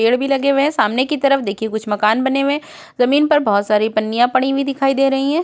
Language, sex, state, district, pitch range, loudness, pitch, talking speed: Hindi, female, Uttar Pradesh, Budaun, 220-275 Hz, -16 LUFS, 270 Hz, 275 wpm